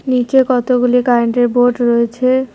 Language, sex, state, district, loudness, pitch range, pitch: Bengali, female, West Bengal, Cooch Behar, -13 LUFS, 240-255 Hz, 245 Hz